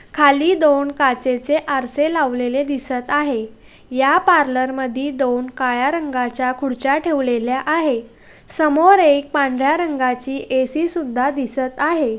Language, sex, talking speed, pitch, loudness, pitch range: Marathi, female, 120 wpm, 275 Hz, -18 LUFS, 255-300 Hz